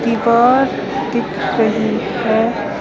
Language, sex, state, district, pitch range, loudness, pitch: Hindi, female, Himachal Pradesh, Shimla, 230-245 Hz, -16 LUFS, 235 Hz